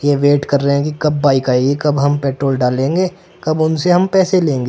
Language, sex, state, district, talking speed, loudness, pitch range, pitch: Hindi, male, Uttar Pradesh, Saharanpur, 230 wpm, -15 LUFS, 140-160 Hz, 145 Hz